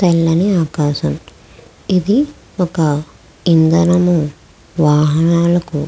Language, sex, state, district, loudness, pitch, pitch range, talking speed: Telugu, female, Andhra Pradesh, Krishna, -15 LUFS, 165 Hz, 150-175 Hz, 60 wpm